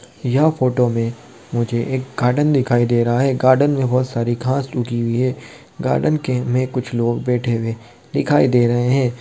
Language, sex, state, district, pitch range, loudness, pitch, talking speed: Hindi, male, Bihar, Kishanganj, 120-130 Hz, -18 LUFS, 125 Hz, 190 wpm